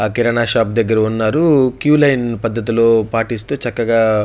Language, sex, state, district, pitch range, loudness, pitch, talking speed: Telugu, male, Andhra Pradesh, Chittoor, 115-125 Hz, -15 LUFS, 115 Hz, 170 wpm